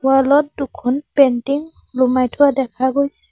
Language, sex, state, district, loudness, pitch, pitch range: Assamese, female, Assam, Sonitpur, -17 LUFS, 270 Hz, 255-280 Hz